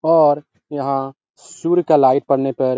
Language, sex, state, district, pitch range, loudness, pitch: Hindi, male, Bihar, Araria, 135-155 Hz, -17 LUFS, 140 Hz